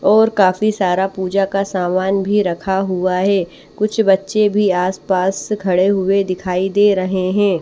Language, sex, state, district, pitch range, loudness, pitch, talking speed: Hindi, male, Odisha, Nuapada, 185-200 Hz, -16 LUFS, 190 Hz, 155 wpm